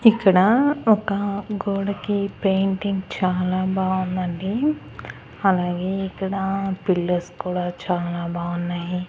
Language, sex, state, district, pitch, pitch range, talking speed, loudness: Telugu, female, Andhra Pradesh, Annamaya, 190 Hz, 180-200 Hz, 85 wpm, -22 LUFS